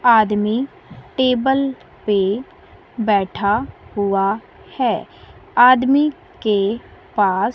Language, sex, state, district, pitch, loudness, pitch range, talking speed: Hindi, female, Bihar, West Champaran, 235 Hz, -18 LUFS, 205-265 Hz, 70 wpm